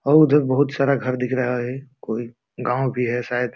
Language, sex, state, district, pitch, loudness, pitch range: Hindi, male, Bihar, Jamui, 125 Hz, -21 LUFS, 125-135 Hz